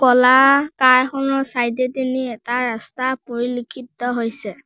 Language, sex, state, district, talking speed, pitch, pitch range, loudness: Assamese, female, Assam, Sonitpur, 130 wpm, 255 Hz, 240-260 Hz, -18 LUFS